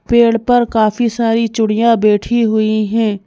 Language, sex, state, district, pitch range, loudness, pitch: Hindi, female, Madhya Pradesh, Bhopal, 215-235 Hz, -13 LUFS, 225 Hz